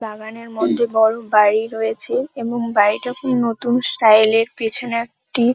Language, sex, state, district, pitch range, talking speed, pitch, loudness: Bengali, female, West Bengal, Paschim Medinipur, 220-240 Hz, 150 wpm, 230 Hz, -18 LUFS